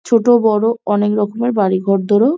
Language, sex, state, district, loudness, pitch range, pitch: Bengali, female, West Bengal, Jhargram, -15 LUFS, 205-235 Hz, 210 Hz